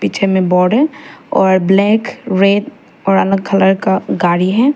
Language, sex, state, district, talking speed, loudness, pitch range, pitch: Hindi, female, Arunachal Pradesh, Papum Pare, 150 wpm, -13 LUFS, 190-210 Hz, 195 Hz